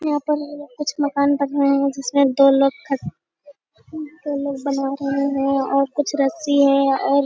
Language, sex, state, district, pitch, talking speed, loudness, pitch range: Hindi, female, Bihar, Jamui, 280 Hz, 180 wpm, -19 LUFS, 275-290 Hz